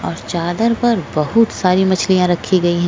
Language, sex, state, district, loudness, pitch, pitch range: Hindi, female, Goa, North and South Goa, -16 LUFS, 185 Hz, 175-215 Hz